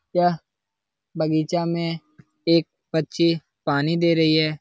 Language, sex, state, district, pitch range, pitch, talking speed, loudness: Hindi, male, Bihar, Jahanabad, 155-170 Hz, 160 Hz, 115 wpm, -22 LUFS